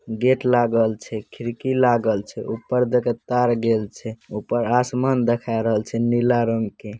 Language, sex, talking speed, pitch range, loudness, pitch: Angika, male, 170 wpm, 110-125 Hz, -21 LUFS, 120 Hz